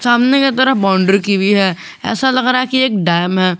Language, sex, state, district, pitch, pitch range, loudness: Hindi, male, Jharkhand, Garhwa, 205 Hz, 190-260 Hz, -13 LUFS